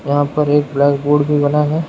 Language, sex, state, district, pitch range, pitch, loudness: Hindi, male, Uttar Pradesh, Lucknow, 145-150 Hz, 145 Hz, -15 LUFS